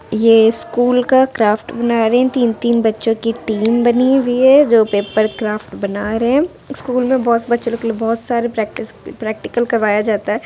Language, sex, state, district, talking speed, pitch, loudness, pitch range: Hindi, female, Bihar, Muzaffarpur, 205 wpm, 230 Hz, -15 LUFS, 220-245 Hz